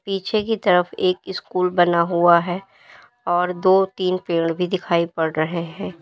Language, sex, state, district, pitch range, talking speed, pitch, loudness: Hindi, female, Uttar Pradesh, Lalitpur, 170-190 Hz, 170 wpm, 180 Hz, -20 LUFS